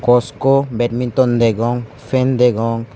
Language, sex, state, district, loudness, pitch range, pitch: Chakma, male, Tripura, Unakoti, -16 LUFS, 115-130 Hz, 120 Hz